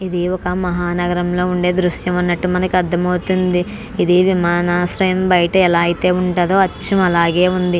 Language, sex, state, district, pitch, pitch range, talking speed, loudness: Telugu, female, Andhra Pradesh, Krishna, 180 Hz, 175-185 Hz, 145 wpm, -16 LUFS